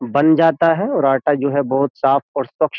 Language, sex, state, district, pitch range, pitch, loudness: Hindi, male, Uttar Pradesh, Jyotiba Phule Nagar, 135-165 Hz, 140 Hz, -16 LUFS